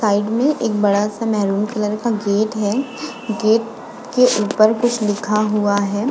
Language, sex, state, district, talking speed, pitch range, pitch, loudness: Hindi, female, Uttar Pradesh, Muzaffarnagar, 165 wpm, 205-235 Hz, 215 Hz, -18 LUFS